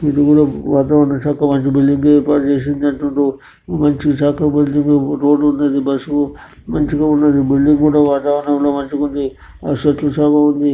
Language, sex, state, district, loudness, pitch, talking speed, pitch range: Telugu, male, Andhra Pradesh, Srikakulam, -14 LUFS, 145 Hz, 150 wpm, 140-145 Hz